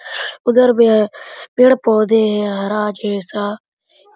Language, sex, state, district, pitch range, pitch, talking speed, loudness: Hindi, male, Jharkhand, Sahebganj, 210-250 Hz, 220 Hz, 100 wpm, -15 LUFS